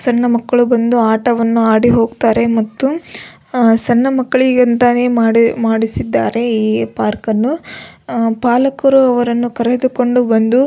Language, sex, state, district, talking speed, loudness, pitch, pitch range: Kannada, female, Karnataka, Belgaum, 120 wpm, -13 LUFS, 240 Hz, 225-250 Hz